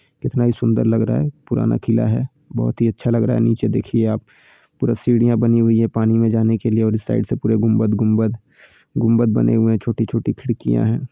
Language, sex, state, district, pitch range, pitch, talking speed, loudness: Bhojpuri, male, Uttar Pradesh, Ghazipur, 110-120 Hz, 115 Hz, 230 wpm, -18 LUFS